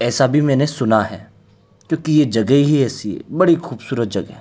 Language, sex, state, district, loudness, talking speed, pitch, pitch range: Hindi, male, Uttar Pradesh, Hamirpur, -17 LUFS, 205 wpm, 125 Hz, 105-145 Hz